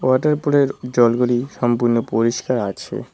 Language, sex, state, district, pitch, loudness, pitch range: Bengali, male, West Bengal, Cooch Behar, 125 Hz, -19 LUFS, 120-135 Hz